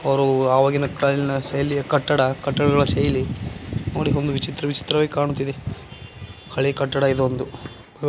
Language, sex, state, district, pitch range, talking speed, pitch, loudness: Kannada, male, Karnataka, Bijapur, 130-145 Hz, 125 wpm, 135 Hz, -21 LUFS